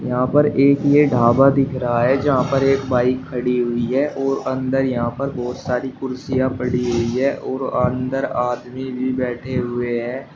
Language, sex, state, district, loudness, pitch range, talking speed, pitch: Hindi, male, Uttar Pradesh, Shamli, -19 LUFS, 125-135 Hz, 185 wpm, 130 Hz